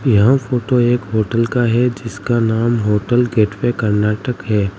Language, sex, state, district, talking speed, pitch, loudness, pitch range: Hindi, male, Uttar Pradesh, Lalitpur, 165 wpm, 115 Hz, -16 LUFS, 105-120 Hz